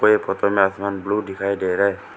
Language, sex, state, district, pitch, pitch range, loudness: Hindi, male, Arunachal Pradesh, Lower Dibang Valley, 100 Hz, 95-100 Hz, -21 LUFS